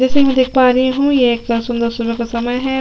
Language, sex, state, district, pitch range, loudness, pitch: Hindi, female, Chhattisgarh, Sukma, 235-260 Hz, -15 LUFS, 250 Hz